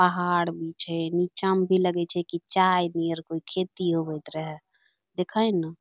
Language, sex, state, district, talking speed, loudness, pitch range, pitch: Angika, female, Bihar, Bhagalpur, 175 wpm, -26 LUFS, 165-180 Hz, 175 Hz